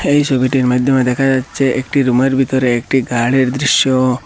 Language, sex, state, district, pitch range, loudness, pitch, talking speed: Bengali, male, Assam, Hailakandi, 125-135 Hz, -14 LUFS, 130 Hz, 155 wpm